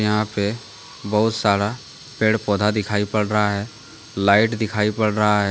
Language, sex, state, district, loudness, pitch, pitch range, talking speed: Hindi, male, Jharkhand, Deoghar, -20 LUFS, 105 Hz, 105-110 Hz, 165 wpm